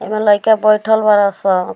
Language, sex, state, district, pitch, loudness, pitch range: Bhojpuri, female, Bihar, Muzaffarpur, 210 Hz, -13 LUFS, 200-215 Hz